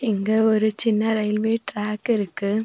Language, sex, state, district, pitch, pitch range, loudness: Tamil, female, Tamil Nadu, Nilgiris, 215 Hz, 210-220 Hz, -21 LUFS